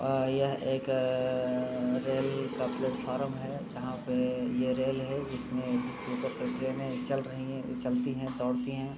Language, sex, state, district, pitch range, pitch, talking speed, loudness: Hindi, male, Bihar, East Champaran, 125-135 Hz, 130 Hz, 160 wpm, -32 LUFS